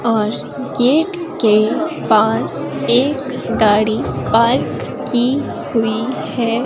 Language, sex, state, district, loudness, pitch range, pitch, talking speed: Hindi, female, Himachal Pradesh, Shimla, -16 LUFS, 220-270 Hz, 240 Hz, 90 wpm